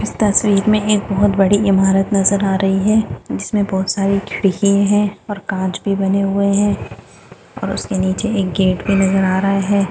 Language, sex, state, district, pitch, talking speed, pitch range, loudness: Hindi, female, Goa, North and South Goa, 195 Hz, 200 wpm, 195-205 Hz, -16 LUFS